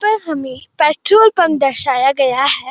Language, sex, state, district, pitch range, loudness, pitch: Hindi, female, Uttarakhand, Uttarkashi, 270-385 Hz, -14 LUFS, 300 Hz